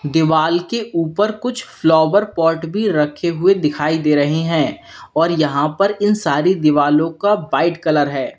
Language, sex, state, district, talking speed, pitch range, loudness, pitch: Hindi, male, Uttar Pradesh, Lalitpur, 165 wpm, 150-195 Hz, -16 LUFS, 165 Hz